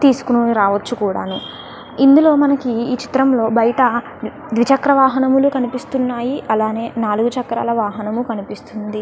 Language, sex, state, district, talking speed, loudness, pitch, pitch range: Telugu, female, Andhra Pradesh, Guntur, 100 wpm, -16 LUFS, 240 Hz, 225-265 Hz